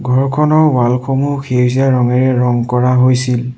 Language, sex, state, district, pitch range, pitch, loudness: Assamese, male, Assam, Sonitpur, 125-135 Hz, 125 Hz, -13 LUFS